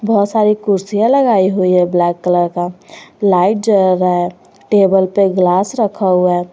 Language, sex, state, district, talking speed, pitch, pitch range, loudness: Hindi, female, Jharkhand, Garhwa, 175 wpm, 190 Hz, 180-205 Hz, -13 LUFS